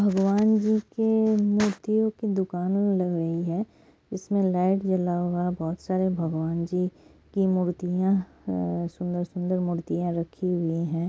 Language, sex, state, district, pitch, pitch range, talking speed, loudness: Hindi, female, West Bengal, Jalpaiguri, 185 Hz, 175-200 Hz, 135 wpm, -26 LUFS